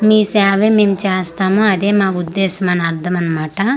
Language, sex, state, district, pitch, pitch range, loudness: Telugu, female, Andhra Pradesh, Manyam, 195 Hz, 180-205 Hz, -15 LUFS